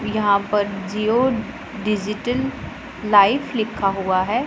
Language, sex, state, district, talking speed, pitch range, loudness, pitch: Hindi, female, Punjab, Pathankot, 105 wpm, 200-235 Hz, -20 LUFS, 215 Hz